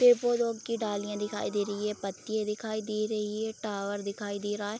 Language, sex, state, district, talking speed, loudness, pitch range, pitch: Hindi, female, Bihar, Sitamarhi, 215 wpm, -32 LUFS, 205-220 Hz, 210 Hz